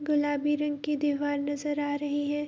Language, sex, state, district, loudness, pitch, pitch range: Hindi, female, Bihar, Araria, -29 LUFS, 290 Hz, 290-295 Hz